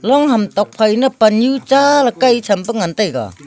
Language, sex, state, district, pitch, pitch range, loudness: Wancho, female, Arunachal Pradesh, Longding, 225 Hz, 205-265 Hz, -14 LUFS